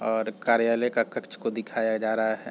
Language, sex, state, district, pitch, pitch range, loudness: Hindi, male, Chhattisgarh, Raigarh, 110 Hz, 110-115 Hz, -26 LUFS